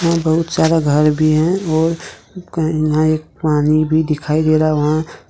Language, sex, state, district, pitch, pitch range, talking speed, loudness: Hindi, male, Jharkhand, Deoghar, 155 Hz, 155-160 Hz, 170 wpm, -15 LUFS